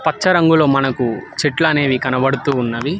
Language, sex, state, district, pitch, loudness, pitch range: Telugu, male, Telangana, Hyderabad, 140 Hz, -16 LUFS, 130-160 Hz